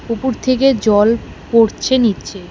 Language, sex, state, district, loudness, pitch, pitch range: Bengali, female, West Bengal, Alipurduar, -15 LUFS, 230 Hz, 215-255 Hz